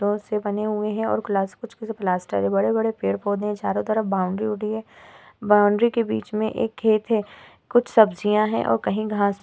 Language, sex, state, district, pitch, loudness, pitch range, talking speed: Hindi, female, Uttar Pradesh, Hamirpur, 210 Hz, -22 LUFS, 200-220 Hz, 210 wpm